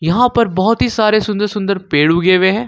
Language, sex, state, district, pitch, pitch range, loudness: Hindi, male, Jharkhand, Ranchi, 205 Hz, 185-220 Hz, -14 LUFS